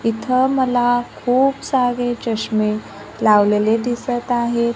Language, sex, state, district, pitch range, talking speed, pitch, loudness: Marathi, female, Maharashtra, Gondia, 225-250 Hz, 100 wpm, 240 Hz, -18 LUFS